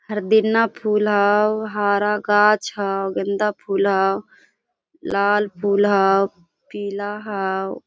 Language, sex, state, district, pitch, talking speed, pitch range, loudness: Hindi, female, Jharkhand, Sahebganj, 205 Hz, 105 wpm, 195-210 Hz, -19 LUFS